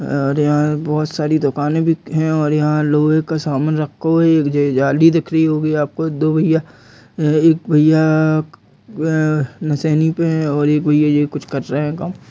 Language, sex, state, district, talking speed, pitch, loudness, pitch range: Hindi, female, Uttar Pradesh, Jalaun, 180 wpm, 155 Hz, -16 LUFS, 150-160 Hz